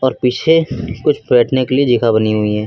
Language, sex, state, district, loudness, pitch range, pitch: Hindi, male, Uttar Pradesh, Lucknow, -14 LUFS, 115-140 Hz, 125 Hz